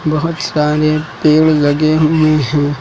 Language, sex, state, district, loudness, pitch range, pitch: Hindi, male, Uttar Pradesh, Lucknow, -13 LUFS, 150-155 Hz, 155 Hz